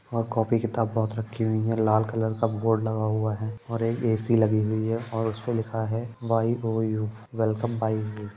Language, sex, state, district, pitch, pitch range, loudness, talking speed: Hindi, male, Uttar Pradesh, Budaun, 110 Hz, 110-115 Hz, -26 LUFS, 200 wpm